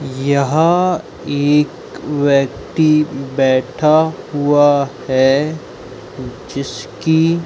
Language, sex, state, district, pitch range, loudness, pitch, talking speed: Hindi, male, Madhya Pradesh, Dhar, 140-155 Hz, -15 LUFS, 145 Hz, 55 wpm